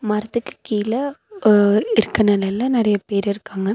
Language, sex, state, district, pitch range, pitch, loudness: Tamil, female, Tamil Nadu, Nilgiris, 205-230 Hz, 210 Hz, -19 LUFS